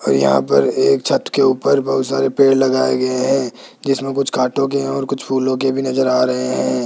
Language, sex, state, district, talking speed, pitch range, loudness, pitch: Hindi, male, Rajasthan, Jaipur, 220 wpm, 125-135 Hz, -16 LUFS, 130 Hz